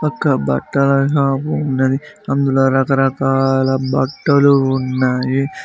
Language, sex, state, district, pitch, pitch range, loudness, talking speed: Telugu, male, Telangana, Mahabubabad, 135 Hz, 130-140 Hz, -16 LUFS, 85 wpm